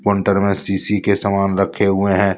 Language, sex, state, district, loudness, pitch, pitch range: Hindi, male, Jharkhand, Deoghar, -17 LUFS, 100 Hz, 95-100 Hz